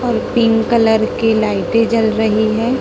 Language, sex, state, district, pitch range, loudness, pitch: Hindi, female, Chhattisgarh, Raipur, 220-235 Hz, -14 LUFS, 225 Hz